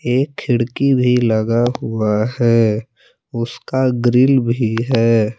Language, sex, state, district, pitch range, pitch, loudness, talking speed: Hindi, male, Jharkhand, Palamu, 115-125 Hz, 120 Hz, -16 LUFS, 110 wpm